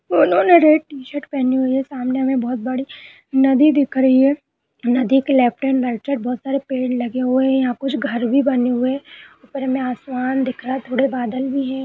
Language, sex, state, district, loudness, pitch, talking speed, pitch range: Hindi, female, Uttar Pradesh, Budaun, -18 LUFS, 265 Hz, 220 wpm, 255-275 Hz